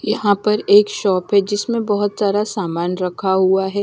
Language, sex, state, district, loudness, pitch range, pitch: Hindi, female, Himachal Pradesh, Shimla, -17 LUFS, 190-210 Hz, 205 Hz